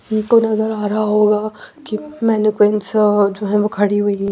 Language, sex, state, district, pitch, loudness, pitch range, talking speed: Hindi, female, Punjab, Pathankot, 210 Hz, -16 LUFS, 205-215 Hz, 180 wpm